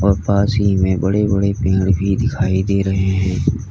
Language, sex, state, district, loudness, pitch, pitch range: Hindi, male, Uttar Pradesh, Lalitpur, -17 LUFS, 100 Hz, 95-100 Hz